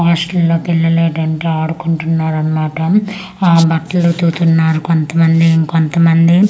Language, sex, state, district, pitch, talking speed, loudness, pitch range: Telugu, female, Andhra Pradesh, Manyam, 165 Hz, 130 wpm, -13 LUFS, 160-170 Hz